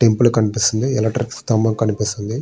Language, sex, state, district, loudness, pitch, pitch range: Telugu, male, Andhra Pradesh, Srikakulam, -18 LUFS, 110 Hz, 110-120 Hz